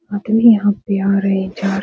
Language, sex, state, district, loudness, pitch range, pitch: Hindi, female, Bihar, Supaul, -15 LUFS, 195-205 Hz, 200 Hz